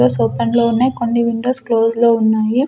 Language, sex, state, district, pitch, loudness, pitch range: Telugu, female, Andhra Pradesh, Sri Satya Sai, 230 Hz, -15 LUFS, 220-240 Hz